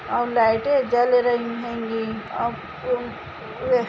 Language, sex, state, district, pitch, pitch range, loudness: Hindi, female, Chhattisgarh, Bilaspur, 240 Hz, 225-250 Hz, -23 LUFS